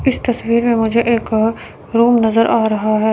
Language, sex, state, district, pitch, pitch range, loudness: Hindi, female, Chandigarh, Chandigarh, 230 Hz, 220-235 Hz, -15 LUFS